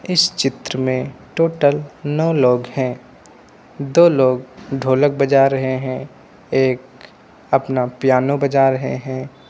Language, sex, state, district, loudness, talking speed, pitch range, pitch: Hindi, male, Uttar Pradesh, Lucknow, -18 LUFS, 120 wpm, 130-145 Hz, 135 Hz